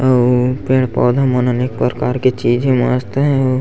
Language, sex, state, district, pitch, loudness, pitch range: Chhattisgarhi, male, Chhattisgarh, Sarguja, 125 Hz, -15 LUFS, 125-130 Hz